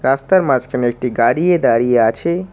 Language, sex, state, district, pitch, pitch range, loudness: Bengali, male, West Bengal, Cooch Behar, 125 Hz, 120-170 Hz, -15 LUFS